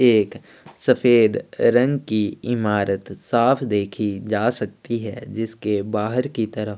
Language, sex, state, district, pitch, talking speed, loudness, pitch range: Hindi, male, Chhattisgarh, Sukma, 110 Hz, 125 wpm, -21 LUFS, 105-120 Hz